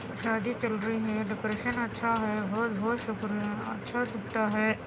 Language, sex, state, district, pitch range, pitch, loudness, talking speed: Hindi, female, Andhra Pradesh, Anantapur, 215-230 Hz, 220 Hz, -31 LUFS, 135 wpm